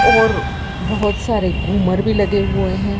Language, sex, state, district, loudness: Hindi, female, Madhya Pradesh, Dhar, -17 LUFS